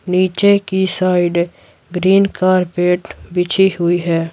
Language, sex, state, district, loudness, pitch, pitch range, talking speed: Hindi, female, Bihar, Patna, -15 LUFS, 180 Hz, 175-190 Hz, 110 wpm